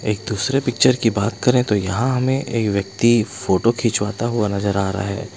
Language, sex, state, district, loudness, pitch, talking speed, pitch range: Hindi, male, Bihar, West Champaran, -19 LUFS, 110 Hz, 200 wpm, 100-125 Hz